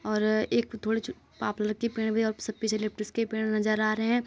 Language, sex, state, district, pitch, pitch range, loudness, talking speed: Hindi, male, Uttar Pradesh, Jalaun, 220 Hz, 215-225 Hz, -29 LUFS, 140 wpm